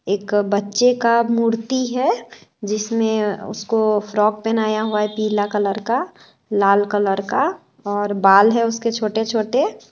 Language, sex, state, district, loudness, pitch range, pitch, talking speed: Hindi, female, Bihar, West Champaran, -19 LUFS, 205-230 Hz, 215 Hz, 135 wpm